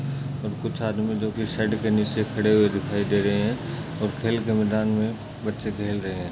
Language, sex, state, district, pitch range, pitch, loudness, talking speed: Hindi, male, Uttar Pradesh, Etah, 105-115 Hz, 110 Hz, -25 LUFS, 220 wpm